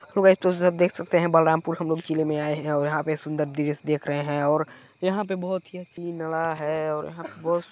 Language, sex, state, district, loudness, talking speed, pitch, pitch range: Hindi, female, Chhattisgarh, Balrampur, -25 LUFS, 225 wpm, 160 Hz, 150-175 Hz